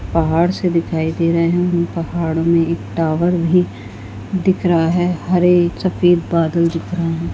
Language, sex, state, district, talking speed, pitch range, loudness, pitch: Hindi, female, Goa, North and South Goa, 155 wpm, 165-175 Hz, -17 LUFS, 170 Hz